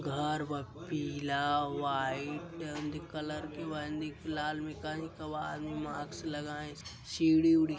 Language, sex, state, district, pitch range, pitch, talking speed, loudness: Hindi, male, Uttar Pradesh, Gorakhpur, 145-155 Hz, 150 Hz, 115 wpm, -35 LUFS